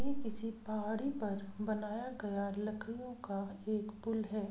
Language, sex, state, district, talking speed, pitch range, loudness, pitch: Hindi, female, Bihar, Saran, 145 wpm, 205-225 Hz, -40 LUFS, 215 Hz